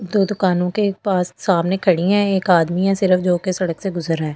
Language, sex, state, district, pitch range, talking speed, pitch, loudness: Hindi, female, Delhi, New Delhi, 175-195 Hz, 250 wpm, 185 Hz, -18 LUFS